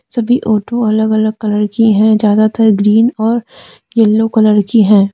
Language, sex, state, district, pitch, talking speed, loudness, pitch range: Hindi, female, Jharkhand, Deoghar, 220 Hz, 165 wpm, -11 LUFS, 210-225 Hz